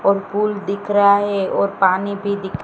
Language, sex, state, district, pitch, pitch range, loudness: Hindi, female, Gujarat, Gandhinagar, 200 Hz, 195-205 Hz, -18 LUFS